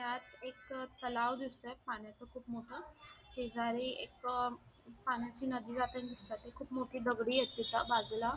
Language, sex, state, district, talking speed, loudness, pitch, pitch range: Marathi, female, Maharashtra, Sindhudurg, 135 wpm, -39 LUFS, 245 Hz, 235-255 Hz